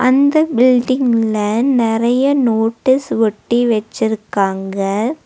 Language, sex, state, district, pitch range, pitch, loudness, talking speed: Tamil, female, Tamil Nadu, Nilgiris, 220-260 Hz, 230 Hz, -15 LUFS, 80 wpm